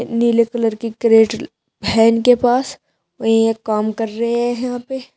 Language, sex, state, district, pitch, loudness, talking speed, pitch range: Hindi, female, Uttar Pradesh, Shamli, 230 Hz, -16 LUFS, 175 wpm, 225-240 Hz